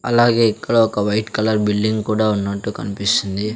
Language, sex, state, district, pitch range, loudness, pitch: Telugu, male, Andhra Pradesh, Sri Satya Sai, 105-110 Hz, -18 LUFS, 105 Hz